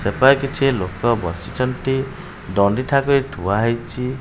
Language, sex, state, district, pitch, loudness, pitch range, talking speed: Odia, male, Odisha, Khordha, 125 Hz, -19 LUFS, 100-135 Hz, 130 wpm